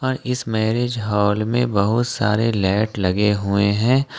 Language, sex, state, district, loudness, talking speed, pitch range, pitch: Hindi, male, Jharkhand, Ranchi, -19 LUFS, 145 wpm, 105-120 Hz, 110 Hz